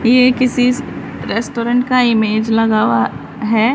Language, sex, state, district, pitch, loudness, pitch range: Hindi, female, Bihar, Patna, 240 Hz, -15 LUFS, 220-250 Hz